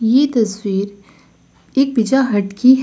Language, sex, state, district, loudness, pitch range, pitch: Hindi, female, Uttar Pradesh, Lucknow, -16 LUFS, 200-265 Hz, 230 Hz